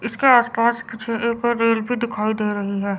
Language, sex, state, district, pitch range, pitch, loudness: Hindi, female, Chandigarh, Chandigarh, 215-235 Hz, 230 Hz, -20 LUFS